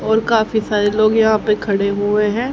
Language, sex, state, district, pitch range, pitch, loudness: Hindi, female, Haryana, Jhajjar, 210-220 Hz, 215 Hz, -16 LUFS